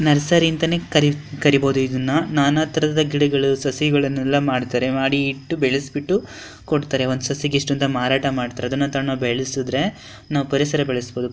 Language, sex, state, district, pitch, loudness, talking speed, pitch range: Kannada, female, Karnataka, Dharwad, 140 Hz, -20 LUFS, 140 wpm, 130-145 Hz